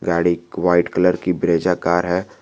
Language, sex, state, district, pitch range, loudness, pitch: Hindi, male, Jharkhand, Garhwa, 85-90 Hz, -18 LUFS, 90 Hz